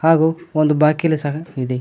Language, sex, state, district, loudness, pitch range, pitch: Kannada, male, Karnataka, Koppal, -18 LUFS, 150-165 Hz, 155 Hz